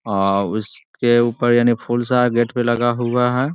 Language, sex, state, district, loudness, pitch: Hindi, male, Bihar, Muzaffarpur, -18 LUFS, 120 Hz